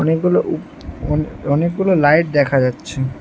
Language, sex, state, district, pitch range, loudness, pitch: Bengali, female, West Bengal, Alipurduar, 140-165 Hz, -17 LUFS, 150 Hz